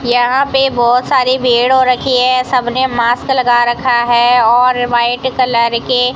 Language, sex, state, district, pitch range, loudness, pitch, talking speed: Hindi, female, Rajasthan, Bikaner, 240-255 Hz, -12 LUFS, 245 Hz, 175 wpm